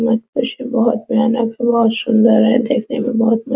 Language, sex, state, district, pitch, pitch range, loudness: Hindi, female, Bihar, Araria, 235 Hz, 230-245 Hz, -15 LUFS